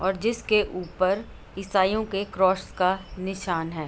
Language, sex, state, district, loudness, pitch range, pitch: Hindi, female, Uttar Pradesh, Budaun, -25 LUFS, 185-200 Hz, 190 Hz